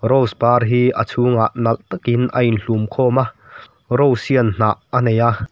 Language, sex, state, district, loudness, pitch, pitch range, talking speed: Mizo, male, Mizoram, Aizawl, -17 LUFS, 120 Hz, 115-125 Hz, 185 wpm